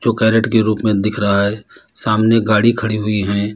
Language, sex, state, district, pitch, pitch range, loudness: Hindi, male, Uttar Pradesh, Lalitpur, 110 Hz, 105-110 Hz, -15 LUFS